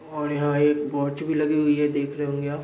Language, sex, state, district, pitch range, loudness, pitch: Hindi, male, Bihar, Muzaffarpur, 145-150 Hz, -24 LUFS, 145 Hz